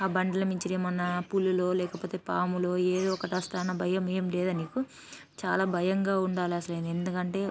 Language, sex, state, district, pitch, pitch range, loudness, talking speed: Telugu, female, Andhra Pradesh, Guntur, 185 Hz, 180-190 Hz, -30 LUFS, 150 wpm